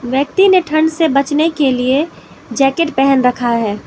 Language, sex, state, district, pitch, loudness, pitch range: Hindi, female, Manipur, Imphal West, 275 Hz, -13 LUFS, 250-320 Hz